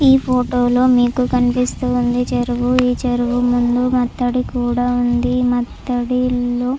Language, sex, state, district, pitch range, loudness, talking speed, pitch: Telugu, female, Andhra Pradesh, Chittoor, 245-250 Hz, -17 LUFS, 135 wpm, 245 Hz